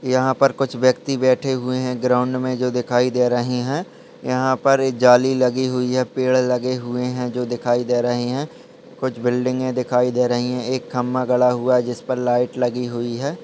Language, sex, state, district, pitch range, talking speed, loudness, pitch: Hindi, male, Bihar, Madhepura, 125-130 Hz, 205 wpm, -20 LUFS, 125 Hz